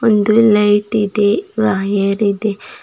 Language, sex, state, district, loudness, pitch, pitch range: Kannada, female, Karnataka, Bidar, -14 LUFS, 210 Hz, 205-215 Hz